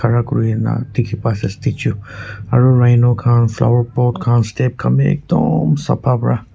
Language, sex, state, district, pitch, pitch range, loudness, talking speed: Nagamese, male, Nagaland, Kohima, 115 Hz, 105-120 Hz, -15 LUFS, 175 wpm